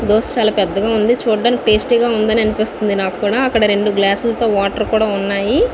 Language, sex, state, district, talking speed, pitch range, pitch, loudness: Telugu, female, Andhra Pradesh, Visakhapatnam, 155 wpm, 205-230 Hz, 215 Hz, -15 LUFS